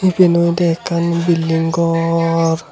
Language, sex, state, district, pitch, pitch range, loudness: Chakma, male, Tripura, Unakoti, 170 Hz, 165-170 Hz, -15 LUFS